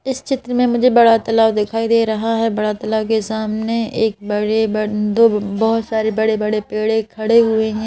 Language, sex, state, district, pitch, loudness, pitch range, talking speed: Hindi, female, Madhya Pradesh, Bhopal, 220 Hz, -16 LUFS, 215-225 Hz, 190 wpm